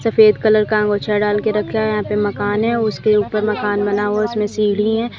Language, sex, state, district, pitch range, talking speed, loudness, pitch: Hindi, female, Uttar Pradesh, Lalitpur, 210-215 Hz, 230 wpm, -17 LUFS, 210 Hz